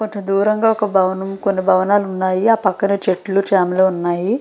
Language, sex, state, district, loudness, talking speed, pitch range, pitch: Telugu, female, Andhra Pradesh, Srikakulam, -16 LUFS, 165 wpm, 185-205 Hz, 195 Hz